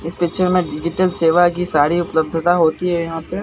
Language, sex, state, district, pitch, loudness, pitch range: Hindi, male, Bihar, Katihar, 170 Hz, -17 LUFS, 165-180 Hz